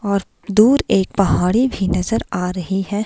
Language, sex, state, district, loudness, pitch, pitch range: Hindi, female, Himachal Pradesh, Shimla, -17 LUFS, 200 Hz, 185-215 Hz